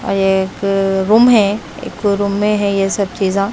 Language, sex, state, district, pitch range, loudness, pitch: Hindi, female, Himachal Pradesh, Shimla, 195-205 Hz, -14 LUFS, 200 Hz